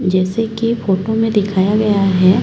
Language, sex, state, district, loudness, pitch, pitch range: Hindi, female, Chhattisgarh, Raipur, -15 LUFS, 205 Hz, 190-220 Hz